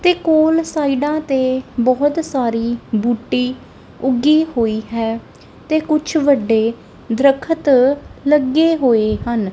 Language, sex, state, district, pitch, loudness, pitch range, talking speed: Punjabi, female, Punjab, Kapurthala, 265 Hz, -16 LUFS, 235-305 Hz, 105 wpm